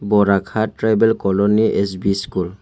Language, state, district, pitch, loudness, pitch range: Kokborok, Tripura, West Tripura, 100 Hz, -17 LUFS, 100-110 Hz